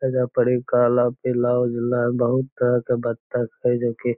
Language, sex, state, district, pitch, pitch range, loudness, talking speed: Magahi, male, Bihar, Lakhisarai, 125 Hz, 120-125 Hz, -21 LUFS, 185 wpm